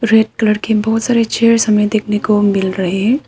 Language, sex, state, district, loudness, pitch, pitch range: Hindi, female, Arunachal Pradesh, Papum Pare, -14 LUFS, 215 Hz, 210-225 Hz